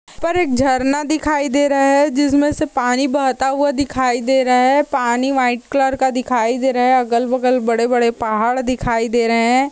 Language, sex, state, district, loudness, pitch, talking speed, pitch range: Hindi, female, Uttar Pradesh, Hamirpur, -16 LUFS, 260 Hz, 210 wpm, 245-280 Hz